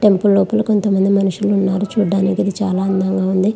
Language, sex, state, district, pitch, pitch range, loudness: Telugu, female, Andhra Pradesh, Visakhapatnam, 195 Hz, 190-205 Hz, -16 LUFS